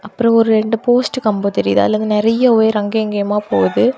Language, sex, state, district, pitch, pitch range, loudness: Tamil, female, Tamil Nadu, Kanyakumari, 215 Hz, 205-230 Hz, -15 LUFS